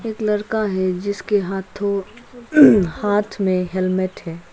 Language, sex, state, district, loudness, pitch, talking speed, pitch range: Hindi, female, Arunachal Pradesh, Lower Dibang Valley, -19 LUFS, 200 Hz, 105 wpm, 185-215 Hz